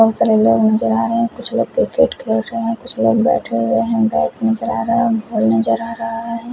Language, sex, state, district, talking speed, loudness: Hindi, male, Odisha, Khordha, 255 wpm, -17 LUFS